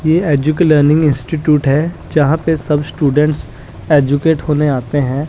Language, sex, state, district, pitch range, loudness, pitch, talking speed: Hindi, male, Punjab, Kapurthala, 145-155 Hz, -14 LUFS, 150 Hz, 150 wpm